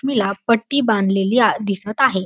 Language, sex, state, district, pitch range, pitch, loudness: Marathi, female, Maharashtra, Dhule, 200-245 Hz, 220 Hz, -18 LUFS